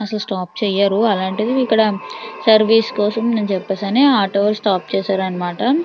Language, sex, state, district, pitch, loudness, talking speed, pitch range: Telugu, female, Andhra Pradesh, Krishna, 210 Hz, -17 LUFS, 125 wpm, 195-225 Hz